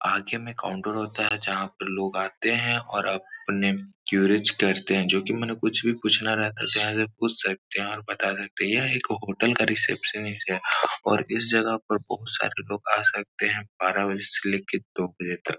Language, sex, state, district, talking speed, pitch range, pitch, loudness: Hindi, male, Uttar Pradesh, Etah, 205 wpm, 95-110 Hz, 105 Hz, -25 LUFS